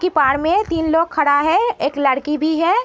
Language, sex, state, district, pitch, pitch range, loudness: Hindi, female, Uttar Pradesh, Etah, 315 Hz, 285-345 Hz, -17 LUFS